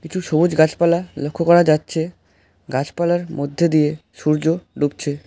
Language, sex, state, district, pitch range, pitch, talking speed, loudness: Bengali, male, West Bengal, Alipurduar, 145-170 Hz, 155 Hz, 125 wpm, -19 LUFS